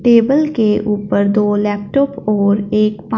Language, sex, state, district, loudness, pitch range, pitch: Hindi, female, Punjab, Fazilka, -15 LUFS, 205-230 Hz, 210 Hz